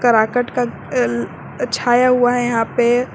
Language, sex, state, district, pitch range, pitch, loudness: Hindi, female, Jharkhand, Garhwa, 235-245 Hz, 245 Hz, -17 LUFS